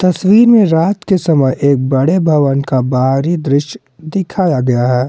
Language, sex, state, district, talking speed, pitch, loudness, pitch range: Hindi, male, Jharkhand, Palamu, 165 wpm, 155 Hz, -12 LUFS, 135-185 Hz